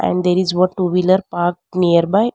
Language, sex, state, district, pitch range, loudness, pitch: English, female, Karnataka, Bangalore, 175-185 Hz, -16 LUFS, 180 Hz